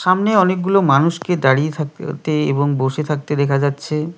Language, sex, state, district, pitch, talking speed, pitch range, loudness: Bengali, male, West Bengal, Cooch Behar, 150 Hz, 160 wpm, 140-175 Hz, -17 LUFS